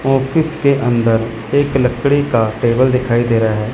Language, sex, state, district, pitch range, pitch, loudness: Hindi, male, Chandigarh, Chandigarh, 115-140 Hz, 125 Hz, -15 LUFS